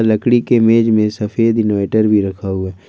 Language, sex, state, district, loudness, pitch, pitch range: Hindi, male, Jharkhand, Ranchi, -14 LUFS, 110 Hz, 100-115 Hz